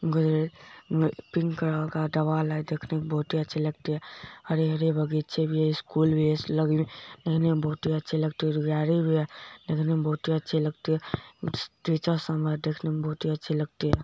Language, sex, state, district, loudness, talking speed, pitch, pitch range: Hindi, female, Bihar, Jamui, -28 LUFS, 190 wpm, 155 Hz, 155-160 Hz